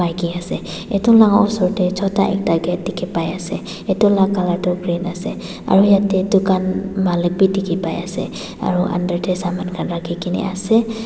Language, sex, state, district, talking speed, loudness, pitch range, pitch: Nagamese, female, Nagaland, Dimapur, 185 wpm, -18 LUFS, 175-195 Hz, 185 Hz